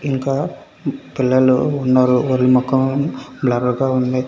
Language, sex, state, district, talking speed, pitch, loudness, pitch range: Telugu, male, Telangana, Hyderabad, 100 wpm, 130 Hz, -17 LUFS, 125-135 Hz